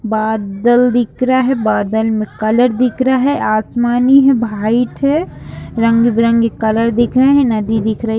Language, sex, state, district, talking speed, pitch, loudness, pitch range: Hindi, female, Bihar, Lakhisarai, 175 wpm, 230 Hz, -13 LUFS, 220-250 Hz